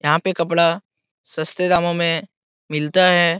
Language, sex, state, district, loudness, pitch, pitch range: Hindi, male, Uttar Pradesh, Etah, -18 LUFS, 170 Hz, 165-180 Hz